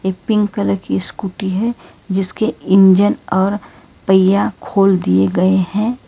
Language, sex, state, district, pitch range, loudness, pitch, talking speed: Hindi, female, Karnataka, Bangalore, 185-205 Hz, -15 LUFS, 190 Hz, 140 wpm